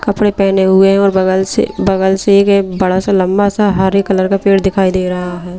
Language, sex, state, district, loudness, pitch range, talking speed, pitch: Hindi, female, Delhi, New Delhi, -12 LUFS, 190-200 Hz, 235 wpm, 195 Hz